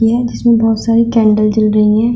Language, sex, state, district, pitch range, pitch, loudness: Hindi, female, Uttar Pradesh, Shamli, 215-230 Hz, 225 Hz, -12 LUFS